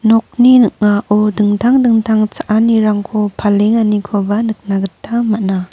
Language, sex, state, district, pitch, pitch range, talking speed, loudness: Garo, female, Meghalaya, North Garo Hills, 215 Hz, 205-225 Hz, 95 wpm, -13 LUFS